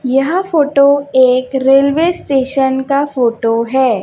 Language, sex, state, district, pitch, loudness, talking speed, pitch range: Hindi, female, Chhattisgarh, Raipur, 270 Hz, -13 LUFS, 120 wpm, 255-280 Hz